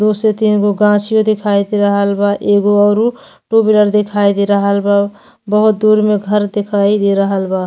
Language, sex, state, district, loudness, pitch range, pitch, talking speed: Bhojpuri, female, Uttar Pradesh, Deoria, -13 LUFS, 200-215 Hz, 205 Hz, 195 wpm